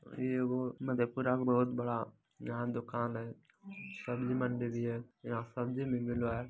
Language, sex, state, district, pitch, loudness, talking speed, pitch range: Maithili, male, Bihar, Madhepura, 125 Hz, -36 LUFS, 175 wpm, 120-125 Hz